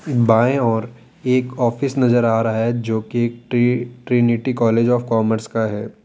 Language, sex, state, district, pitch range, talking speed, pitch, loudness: Hindi, male, Rajasthan, Jaipur, 115-125 Hz, 180 wpm, 120 Hz, -18 LUFS